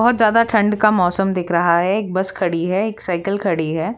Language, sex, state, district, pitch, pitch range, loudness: Hindi, female, Jharkhand, Jamtara, 195 Hz, 175-215 Hz, -18 LUFS